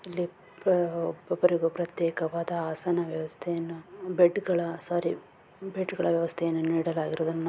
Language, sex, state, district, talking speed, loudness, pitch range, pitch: Kannada, female, Karnataka, Bijapur, 90 wpm, -29 LUFS, 165-180 Hz, 170 Hz